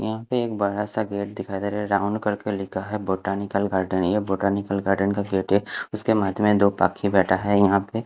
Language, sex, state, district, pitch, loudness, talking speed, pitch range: Hindi, male, Punjab, Fazilka, 100 Hz, -23 LUFS, 230 wpm, 100-105 Hz